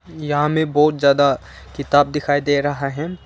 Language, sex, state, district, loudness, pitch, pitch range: Hindi, male, Arunachal Pradesh, Lower Dibang Valley, -18 LUFS, 145 Hz, 140-150 Hz